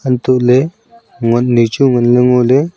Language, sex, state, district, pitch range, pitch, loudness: Wancho, male, Arunachal Pradesh, Longding, 120-135 Hz, 125 Hz, -12 LUFS